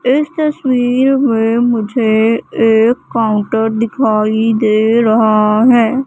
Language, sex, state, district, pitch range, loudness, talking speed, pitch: Hindi, female, Madhya Pradesh, Katni, 220-250 Hz, -12 LUFS, 100 wpm, 230 Hz